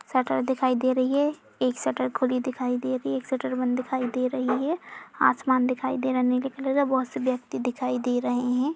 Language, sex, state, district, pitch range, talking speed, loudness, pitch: Hindi, female, Uttar Pradesh, Jalaun, 250-260 Hz, 235 wpm, -26 LUFS, 255 Hz